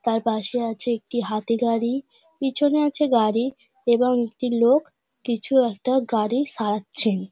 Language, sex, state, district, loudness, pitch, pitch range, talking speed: Bengali, female, West Bengal, Dakshin Dinajpur, -22 LUFS, 240 Hz, 225-260 Hz, 125 wpm